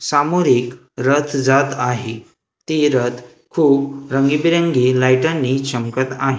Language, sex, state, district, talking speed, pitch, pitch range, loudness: Marathi, male, Maharashtra, Gondia, 115 wpm, 135 Hz, 125-145 Hz, -17 LUFS